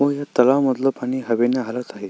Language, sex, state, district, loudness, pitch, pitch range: Marathi, male, Maharashtra, Sindhudurg, -20 LUFS, 125 Hz, 120-135 Hz